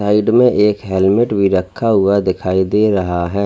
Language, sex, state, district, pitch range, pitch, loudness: Hindi, male, Uttar Pradesh, Lalitpur, 95-105 Hz, 100 Hz, -14 LUFS